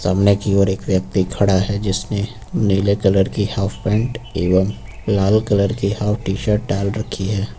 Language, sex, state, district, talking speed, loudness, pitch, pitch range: Hindi, male, Uttar Pradesh, Lucknow, 175 wpm, -18 LUFS, 100 Hz, 95-105 Hz